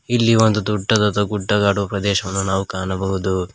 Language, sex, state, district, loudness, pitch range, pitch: Kannada, male, Karnataka, Koppal, -18 LUFS, 95-105 Hz, 100 Hz